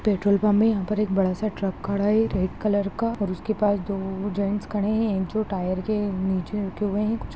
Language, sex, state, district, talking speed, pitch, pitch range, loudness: Hindi, female, Bihar, Begusarai, 255 wpm, 205 Hz, 195-210 Hz, -24 LUFS